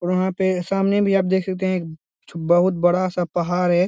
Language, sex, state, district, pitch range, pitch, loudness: Hindi, male, Bihar, Lakhisarai, 175-190 Hz, 180 Hz, -20 LUFS